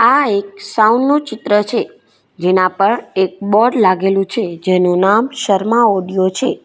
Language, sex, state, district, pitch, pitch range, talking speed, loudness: Gujarati, female, Gujarat, Valsad, 200 Hz, 185-235 Hz, 155 wpm, -14 LUFS